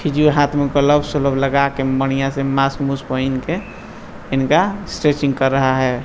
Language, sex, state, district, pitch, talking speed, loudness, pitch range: Hindi, male, Bihar, Muzaffarpur, 140 Hz, 180 wpm, -17 LUFS, 135-145 Hz